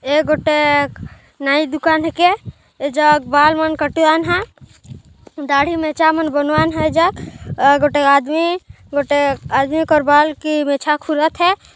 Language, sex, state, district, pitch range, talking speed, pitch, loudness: Chhattisgarhi, female, Chhattisgarh, Jashpur, 290-320 Hz, 145 wpm, 305 Hz, -15 LUFS